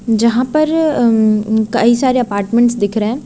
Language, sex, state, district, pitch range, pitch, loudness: Hindi, female, Uttar Pradesh, Lucknow, 220-250 Hz, 235 Hz, -13 LUFS